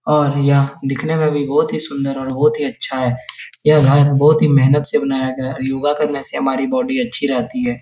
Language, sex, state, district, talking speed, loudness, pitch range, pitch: Hindi, male, Uttar Pradesh, Etah, 220 wpm, -16 LUFS, 135-150 Hz, 140 Hz